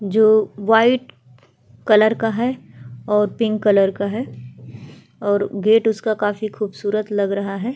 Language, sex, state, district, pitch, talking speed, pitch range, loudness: Hindi, female, Bihar, Vaishali, 205 Hz, 140 wpm, 195-220 Hz, -18 LUFS